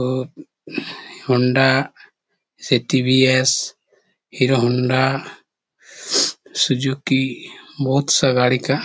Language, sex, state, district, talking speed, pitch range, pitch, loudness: Hindi, male, Chhattisgarh, Korba, 70 wpm, 125-135 Hz, 130 Hz, -18 LUFS